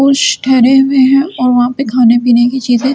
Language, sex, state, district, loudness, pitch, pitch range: Hindi, female, Delhi, New Delhi, -10 LUFS, 260 Hz, 245-275 Hz